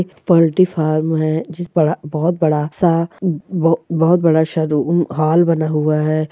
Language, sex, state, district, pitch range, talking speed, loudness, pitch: Hindi, female, Bihar, Purnia, 155-170 Hz, 135 wpm, -16 LUFS, 160 Hz